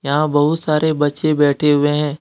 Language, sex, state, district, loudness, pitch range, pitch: Hindi, male, Jharkhand, Deoghar, -16 LUFS, 145-155 Hz, 150 Hz